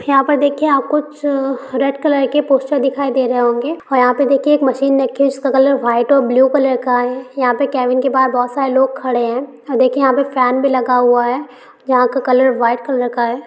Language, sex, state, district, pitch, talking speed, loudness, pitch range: Hindi, female, Bihar, Bhagalpur, 265 Hz, 250 wpm, -15 LUFS, 250-275 Hz